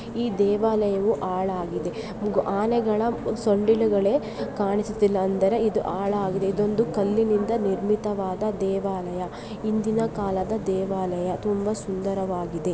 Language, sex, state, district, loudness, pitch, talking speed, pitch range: Kannada, female, Karnataka, Bellary, -25 LUFS, 205 Hz, 85 wpm, 190-215 Hz